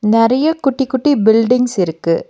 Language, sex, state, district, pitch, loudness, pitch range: Tamil, female, Tamil Nadu, Nilgiris, 245 Hz, -14 LUFS, 215-270 Hz